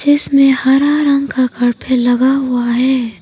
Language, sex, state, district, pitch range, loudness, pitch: Hindi, female, Arunachal Pradesh, Papum Pare, 245-275 Hz, -13 LUFS, 260 Hz